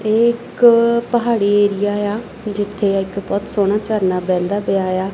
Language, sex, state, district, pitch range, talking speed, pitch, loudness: Punjabi, female, Punjab, Kapurthala, 195-225 Hz, 150 wpm, 205 Hz, -17 LUFS